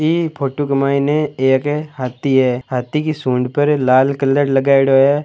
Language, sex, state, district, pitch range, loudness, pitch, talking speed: Marwari, male, Rajasthan, Churu, 130-145 Hz, -16 LUFS, 140 Hz, 185 wpm